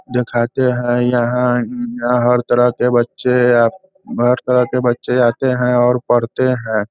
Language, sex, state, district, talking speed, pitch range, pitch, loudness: Hindi, male, Bihar, Sitamarhi, 140 wpm, 120-125 Hz, 125 Hz, -15 LUFS